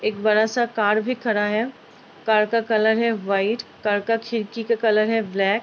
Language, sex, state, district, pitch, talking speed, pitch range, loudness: Hindi, female, Uttar Pradesh, Ghazipur, 220 Hz, 215 wpm, 210-230 Hz, -21 LUFS